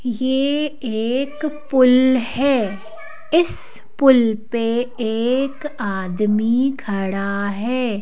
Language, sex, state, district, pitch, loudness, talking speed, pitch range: Hindi, female, Madhya Pradesh, Bhopal, 245 Hz, -19 LUFS, 80 wpm, 215-270 Hz